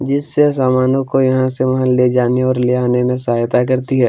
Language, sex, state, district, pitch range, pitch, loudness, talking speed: Hindi, male, Chhattisgarh, Kabirdham, 125-130 Hz, 130 Hz, -15 LUFS, 220 wpm